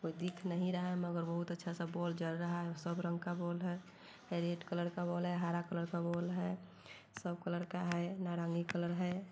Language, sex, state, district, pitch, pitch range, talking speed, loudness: Hindi, female, Bihar, Sitamarhi, 175 Hz, 170-175 Hz, 220 wpm, -40 LUFS